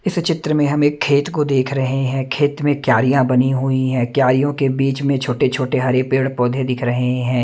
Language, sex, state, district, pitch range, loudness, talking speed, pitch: Hindi, male, Chhattisgarh, Raipur, 130-145 Hz, -17 LUFS, 225 wpm, 135 Hz